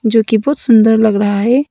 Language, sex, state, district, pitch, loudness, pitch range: Hindi, female, Arunachal Pradesh, Papum Pare, 225 Hz, -11 LUFS, 220-245 Hz